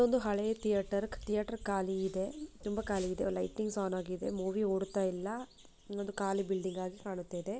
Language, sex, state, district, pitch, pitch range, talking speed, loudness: Kannada, female, Karnataka, Bijapur, 200 Hz, 190-210 Hz, 140 wpm, -36 LUFS